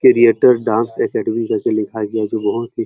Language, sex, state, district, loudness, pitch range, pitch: Hindi, male, Uttar Pradesh, Muzaffarnagar, -16 LUFS, 110-120 Hz, 115 Hz